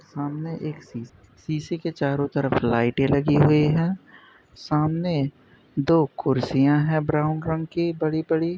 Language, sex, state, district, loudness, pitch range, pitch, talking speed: Hindi, male, Uttar Pradesh, Budaun, -23 LUFS, 140-160 Hz, 150 Hz, 145 wpm